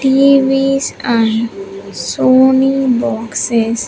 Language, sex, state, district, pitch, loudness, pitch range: English, female, Andhra Pradesh, Sri Satya Sai, 245 Hz, -13 LUFS, 225-270 Hz